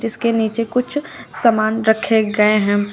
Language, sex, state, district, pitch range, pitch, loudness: Hindi, female, Uttar Pradesh, Shamli, 210-230 Hz, 220 Hz, -17 LUFS